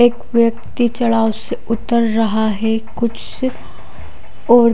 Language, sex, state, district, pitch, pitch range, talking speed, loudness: Hindi, female, Odisha, Khordha, 225 Hz, 215-235 Hz, 115 wpm, -17 LUFS